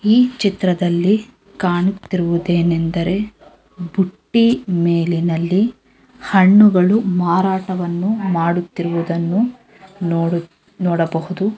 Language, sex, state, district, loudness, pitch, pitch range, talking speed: Kannada, female, Karnataka, Dharwad, -17 LUFS, 180 Hz, 170-200 Hz, 55 wpm